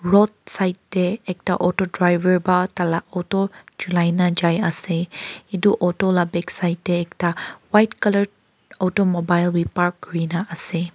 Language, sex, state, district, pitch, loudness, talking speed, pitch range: Nagamese, female, Nagaland, Kohima, 180 Hz, -21 LUFS, 130 wpm, 175-190 Hz